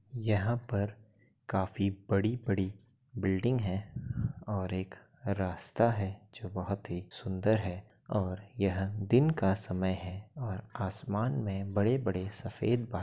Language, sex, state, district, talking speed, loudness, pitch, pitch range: Hindi, male, Uttar Pradesh, Gorakhpur, 130 wpm, -33 LUFS, 100 Hz, 95-115 Hz